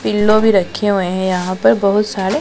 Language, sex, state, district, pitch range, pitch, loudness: Hindi, female, Punjab, Pathankot, 190-210 Hz, 200 Hz, -15 LUFS